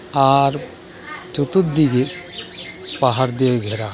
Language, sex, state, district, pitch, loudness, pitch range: Bengali, male, West Bengal, Alipurduar, 135 Hz, -18 LUFS, 125-140 Hz